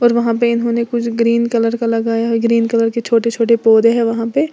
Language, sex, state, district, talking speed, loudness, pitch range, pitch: Hindi, female, Uttar Pradesh, Lalitpur, 250 wpm, -15 LUFS, 230-235 Hz, 230 Hz